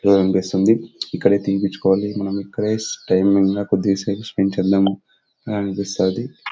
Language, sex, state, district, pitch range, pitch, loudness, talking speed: Telugu, male, Andhra Pradesh, Anantapur, 95-105 Hz, 100 Hz, -19 LUFS, 90 wpm